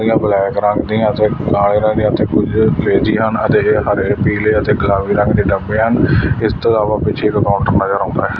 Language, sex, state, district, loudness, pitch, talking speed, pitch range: Punjabi, male, Punjab, Fazilka, -14 LUFS, 105 Hz, 215 wpm, 100-110 Hz